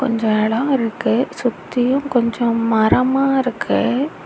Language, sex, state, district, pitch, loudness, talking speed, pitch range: Tamil, female, Tamil Nadu, Kanyakumari, 245 Hz, -18 LUFS, 100 wpm, 230-265 Hz